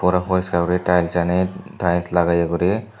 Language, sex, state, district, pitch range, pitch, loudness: Chakma, male, Tripura, Dhalai, 85-90 Hz, 90 Hz, -20 LUFS